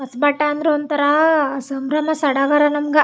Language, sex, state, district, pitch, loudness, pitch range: Kannada, female, Karnataka, Chamarajanagar, 295 Hz, -17 LUFS, 280-300 Hz